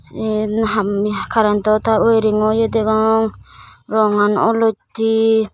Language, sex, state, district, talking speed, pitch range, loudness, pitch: Chakma, female, Tripura, Dhalai, 110 wpm, 215-225 Hz, -16 LUFS, 220 Hz